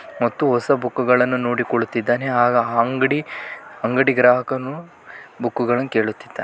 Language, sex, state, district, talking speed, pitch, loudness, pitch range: Kannada, male, Karnataka, Bellary, 85 wpm, 125 Hz, -19 LUFS, 120-130 Hz